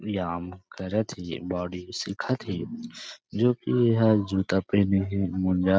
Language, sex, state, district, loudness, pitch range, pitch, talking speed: Chhattisgarhi, male, Chhattisgarh, Rajnandgaon, -26 LUFS, 90-110 Hz, 95 Hz, 145 wpm